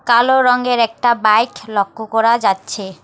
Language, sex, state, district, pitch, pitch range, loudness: Bengali, female, West Bengal, Alipurduar, 230 Hz, 215-240 Hz, -15 LUFS